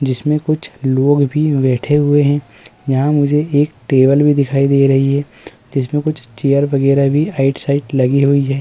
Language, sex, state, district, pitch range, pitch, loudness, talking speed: Hindi, male, Uttar Pradesh, Muzaffarnagar, 135-145 Hz, 140 Hz, -14 LUFS, 175 wpm